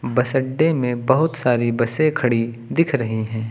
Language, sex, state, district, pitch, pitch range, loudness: Hindi, male, Uttar Pradesh, Lucknow, 125 Hz, 115-140 Hz, -20 LUFS